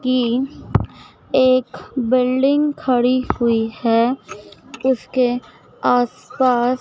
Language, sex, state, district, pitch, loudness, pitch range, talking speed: Hindi, female, Madhya Pradesh, Dhar, 255 Hz, -18 LUFS, 245-260 Hz, 70 wpm